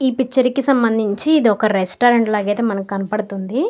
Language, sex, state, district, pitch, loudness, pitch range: Telugu, female, Andhra Pradesh, Guntur, 220 Hz, -17 LUFS, 205-260 Hz